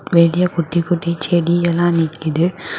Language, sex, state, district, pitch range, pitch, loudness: Tamil, female, Tamil Nadu, Kanyakumari, 165-175 Hz, 170 Hz, -17 LUFS